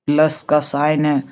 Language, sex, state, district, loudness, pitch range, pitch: Hindi, male, Uttar Pradesh, Etah, -16 LUFS, 145-155 Hz, 150 Hz